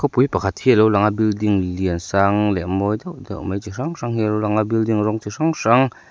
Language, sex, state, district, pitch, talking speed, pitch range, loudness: Mizo, male, Mizoram, Aizawl, 105 Hz, 275 wpm, 100-120 Hz, -19 LUFS